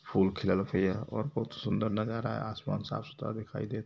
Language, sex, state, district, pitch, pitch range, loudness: Hindi, male, Uttar Pradesh, Varanasi, 110 Hz, 100-115 Hz, -33 LUFS